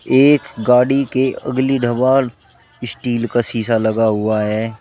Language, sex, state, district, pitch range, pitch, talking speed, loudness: Hindi, male, Uttar Pradesh, Shamli, 115-130 Hz, 120 Hz, 125 wpm, -16 LUFS